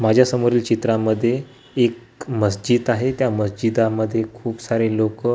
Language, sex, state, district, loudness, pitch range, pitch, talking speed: Marathi, male, Maharashtra, Gondia, -20 LUFS, 110-120 Hz, 115 Hz, 125 wpm